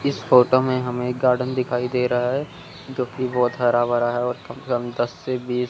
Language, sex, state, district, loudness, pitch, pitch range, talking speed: Hindi, male, Chandigarh, Chandigarh, -21 LUFS, 125 Hz, 120-130 Hz, 210 wpm